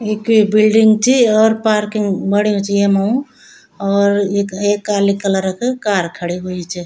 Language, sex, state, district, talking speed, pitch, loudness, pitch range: Garhwali, female, Uttarakhand, Tehri Garhwal, 165 wpm, 205 Hz, -15 LUFS, 195-215 Hz